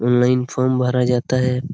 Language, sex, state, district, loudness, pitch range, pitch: Hindi, male, Jharkhand, Sahebganj, -18 LUFS, 125-130 Hz, 125 Hz